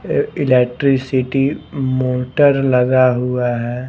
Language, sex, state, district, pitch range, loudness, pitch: Hindi, male, Bihar, Patna, 125-135 Hz, -16 LUFS, 130 Hz